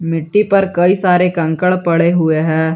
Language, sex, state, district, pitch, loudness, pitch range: Hindi, male, Jharkhand, Garhwa, 170 Hz, -13 LUFS, 160-180 Hz